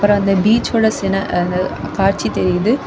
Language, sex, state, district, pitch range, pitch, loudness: Tamil, female, Tamil Nadu, Kanyakumari, 185-220 Hz, 195 Hz, -16 LUFS